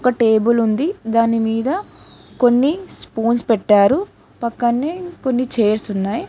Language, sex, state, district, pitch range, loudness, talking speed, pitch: Telugu, female, Telangana, Hyderabad, 225-265 Hz, -18 LUFS, 115 wpm, 235 Hz